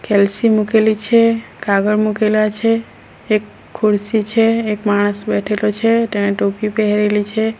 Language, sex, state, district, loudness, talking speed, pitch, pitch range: Gujarati, female, Gujarat, Valsad, -16 LUFS, 135 wpm, 215 Hz, 205-225 Hz